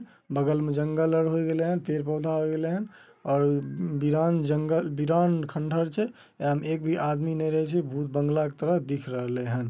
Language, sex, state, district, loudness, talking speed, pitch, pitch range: Magahi, male, Bihar, Samastipur, -27 LUFS, 210 wpm, 155 Hz, 145-165 Hz